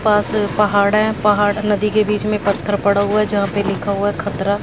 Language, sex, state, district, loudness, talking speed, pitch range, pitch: Hindi, female, Haryana, Jhajjar, -17 LUFS, 220 wpm, 200-210 Hz, 205 Hz